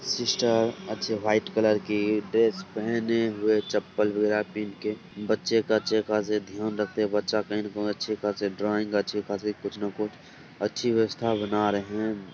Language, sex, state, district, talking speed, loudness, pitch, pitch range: Hindi, male, Bihar, Samastipur, 170 wpm, -27 LUFS, 105 Hz, 105-110 Hz